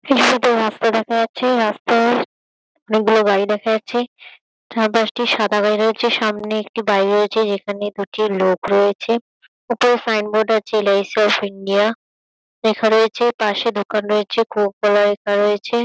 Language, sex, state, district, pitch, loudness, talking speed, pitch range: Bengali, female, West Bengal, Kolkata, 215 Hz, -17 LUFS, 145 wpm, 205-230 Hz